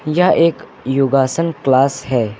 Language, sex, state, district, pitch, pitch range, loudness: Hindi, male, Uttar Pradesh, Lucknow, 135 Hz, 130-165 Hz, -15 LUFS